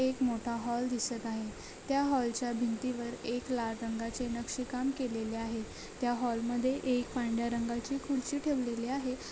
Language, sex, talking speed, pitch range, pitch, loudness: Marathi, female, 140 wpm, 235-255 Hz, 240 Hz, -34 LUFS